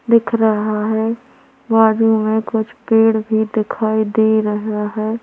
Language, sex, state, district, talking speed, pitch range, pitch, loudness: Hindi, female, Chhattisgarh, Korba, 140 wpm, 215-225 Hz, 220 Hz, -16 LUFS